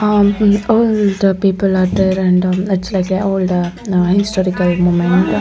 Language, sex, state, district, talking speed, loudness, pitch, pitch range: English, female, Chandigarh, Chandigarh, 135 wpm, -14 LUFS, 190 Hz, 185-200 Hz